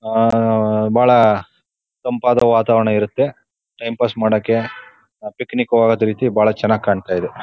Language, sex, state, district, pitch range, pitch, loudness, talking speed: Kannada, male, Karnataka, Chamarajanagar, 110-120 Hz, 115 Hz, -16 LUFS, 115 wpm